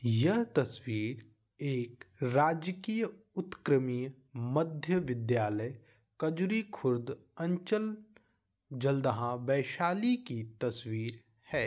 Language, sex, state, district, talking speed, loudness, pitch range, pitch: Hindi, male, Bihar, Vaishali, 75 wpm, -33 LUFS, 120-175 Hz, 130 Hz